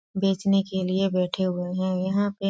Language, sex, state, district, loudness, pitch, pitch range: Hindi, female, Bihar, Sitamarhi, -25 LUFS, 190 Hz, 185-195 Hz